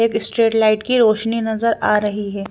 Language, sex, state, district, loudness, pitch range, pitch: Hindi, female, Chandigarh, Chandigarh, -17 LUFS, 210-230 Hz, 220 Hz